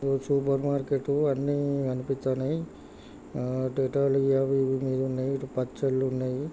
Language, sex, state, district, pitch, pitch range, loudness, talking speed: Telugu, male, Andhra Pradesh, Chittoor, 135 Hz, 130-140 Hz, -28 LUFS, 110 wpm